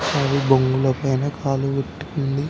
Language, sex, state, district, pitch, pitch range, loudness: Telugu, male, Telangana, Karimnagar, 135 Hz, 135-140 Hz, -21 LUFS